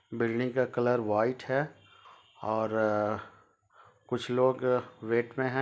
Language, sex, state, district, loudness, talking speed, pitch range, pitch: Hindi, male, Jharkhand, Sahebganj, -30 LUFS, 115 wpm, 110-125 Hz, 120 Hz